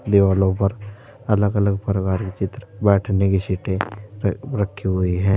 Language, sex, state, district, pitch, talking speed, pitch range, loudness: Hindi, male, Uttar Pradesh, Saharanpur, 100 Hz, 145 wpm, 95-105 Hz, -21 LUFS